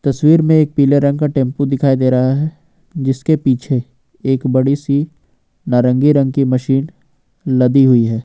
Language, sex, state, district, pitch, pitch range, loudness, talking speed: Hindi, male, Jharkhand, Ranchi, 135 Hz, 130-150 Hz, -14 LUFS, 165 wpm